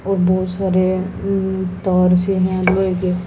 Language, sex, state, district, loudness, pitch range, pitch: Hindi, female, Haryana, Jhajjar, -17 LUFS, 185-190 Hz, 185 Hz